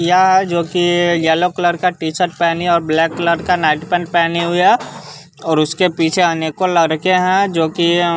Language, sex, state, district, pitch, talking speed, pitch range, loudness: Hindi, male, Bihar, West Champaran, 170 Hz, 200 wpm, 165-180 Hz, -15 LUFS